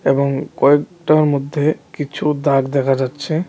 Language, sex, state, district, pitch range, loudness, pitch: Bengali, male, Tripura, West Tripura, 135-150 Hz, -17 LUFS, 145 Hz